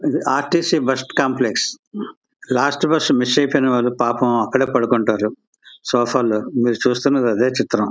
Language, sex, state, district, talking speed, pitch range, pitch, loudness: Telugu, male, Andhra Pradesh, Visakhapatnam, 145 wpm, 115-130 Hz, 125 Hz, -18 LUFS